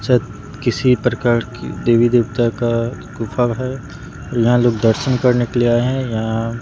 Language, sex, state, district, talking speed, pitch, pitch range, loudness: Hindi, male, Bihar, Katihar, 170 wpm, 120 Hz, 115-125 Hz, -17 LUFS